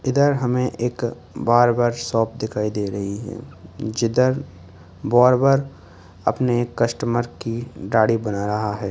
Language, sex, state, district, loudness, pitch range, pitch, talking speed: Hindi, male, Uttar Pradesh, Ghazipur, -21 LUFS, 105-125 Hz, 115 Hz, 120 wpm